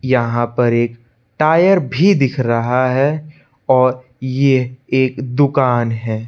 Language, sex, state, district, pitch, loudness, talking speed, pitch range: Hindi, male, Madhya Pradesh, Bhopal, 130 Hz, -15 LUFS, 125 wpm, 120-140 Hz